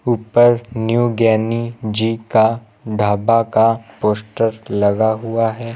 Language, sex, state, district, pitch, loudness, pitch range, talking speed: Hindi, male, Uttar Pradesh, Lucknow, 115 Hz, -17 LUFS, 110-115 Hz, 115 wpm